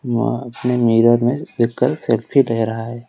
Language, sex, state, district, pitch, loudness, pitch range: Hindi, male, Odisha, Khordha, 120 Hz, -17 LUFS, 115-125 Hz